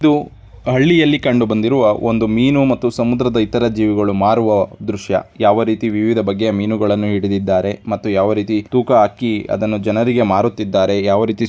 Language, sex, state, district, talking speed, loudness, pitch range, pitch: Kannada, male, Karnataka, Dharwad, 130 wpm, -16 LUFS, 105-120 Hz, 110 Hz